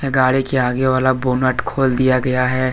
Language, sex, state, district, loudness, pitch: Hindi, male, Jharkhand, Deoghar, -17 LUFS, 130 Hz